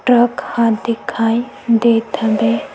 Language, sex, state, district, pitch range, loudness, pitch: Chhattisgarhi, female, Chhattisgarh, Sukma, 210-235 Hz, -16 LUFS, 230 Hz